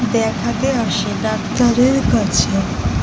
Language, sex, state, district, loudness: Bengali, female, West Bengal, North 24 Parganas, -17 LUFS